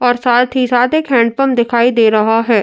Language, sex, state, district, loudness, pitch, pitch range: Hindi, female, Uttar Pradesh, Jyotiba Phule Nagar, -12 LUFS, 240 Hz, 230-255 Hz